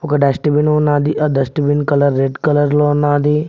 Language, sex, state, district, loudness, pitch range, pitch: Telugu, male, Telangana, Mahabubabad, -15 LUFS, 145-150 Hz, 145 Hz